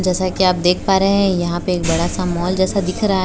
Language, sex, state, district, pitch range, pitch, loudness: Hindi, female, Gujarat, Valsad, 175-190 Hz, 185 Hz, -17 LUFS